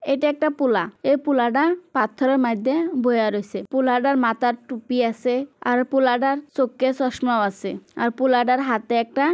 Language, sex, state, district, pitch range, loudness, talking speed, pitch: Bengali, female, West Bengal, Kolkata, 240-275 Hz, -21 LUFS, 140 wpm, 255 Hz